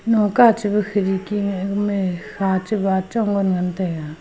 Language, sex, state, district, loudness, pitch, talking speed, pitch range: Wancho, female, Arunachal Pradesh, Longding, -20 LUFS, 195 Hz, 140 wpm, 190-210 Hz